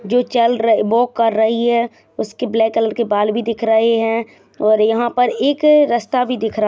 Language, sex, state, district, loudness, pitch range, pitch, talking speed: Hindi, female, Chhattisgarh, Rajnandgaon, -16 LUFS, 220-240 Hz, 230 Hz, 215 wpm